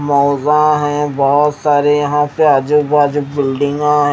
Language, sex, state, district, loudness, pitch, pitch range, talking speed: Hindi, male, Haryana, Jhajjar, -13 LUFS, 145 Hz, 145-150 Hz, 145 wpm